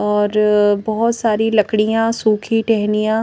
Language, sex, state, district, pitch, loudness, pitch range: Hindi, female, Madhya Pradesh, Bhopal, 215 Hz, -16 LUFS, 210-225 Hz